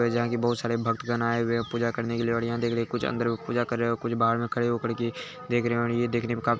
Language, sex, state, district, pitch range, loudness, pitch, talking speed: Hindi, male, Bihar, Araria, 115-120 Hz, -27 LUFS, 120 Hz, 325 wpm